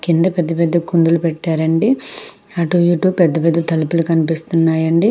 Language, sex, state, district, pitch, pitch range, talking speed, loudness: Telugu, female, Andhra Pradesh, Krishna, 165 Hz, 165-175 Hz, 130 wpm, -16 LUFS